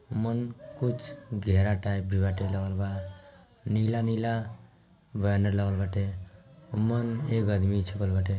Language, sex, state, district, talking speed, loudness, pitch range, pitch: Bhojpuri, male, Bihar, Gopalganj, 135 wpm, -29 LUFS, 95-115 Hz, 100 Hz